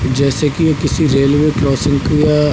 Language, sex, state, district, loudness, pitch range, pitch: Hindi, male, Uttar Pradesh, Budaun, -14 LUFS, 140-150 Hz, 150 Hz